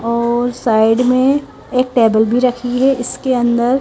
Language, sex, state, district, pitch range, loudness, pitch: Hindi, female, Haryana, Charkhi Dadri, 235-255 Hz, -14 LUFS, 245 Hz